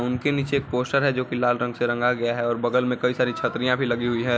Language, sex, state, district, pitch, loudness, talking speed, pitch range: Hindi, male, Uttar Pradesh, Varanasi, 125 Hz, -23 LUFS, 300 wpm, 120-125 Hz